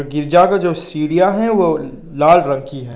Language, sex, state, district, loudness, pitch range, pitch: Hindi, male, Nagaland, Kohima, -14 LUFS, 145-180 Hz, 170 Hz